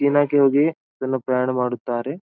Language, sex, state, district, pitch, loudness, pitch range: Kannada, male, Karnataka, Bijapur, 135 Hz, -21 LUFS, 125-145 Hz